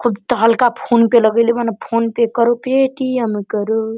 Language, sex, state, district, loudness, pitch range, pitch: Bhojpuri, male, Uttar Pradesh, Deoria, -15 LUFS, 225-240 Hz, 235 Hz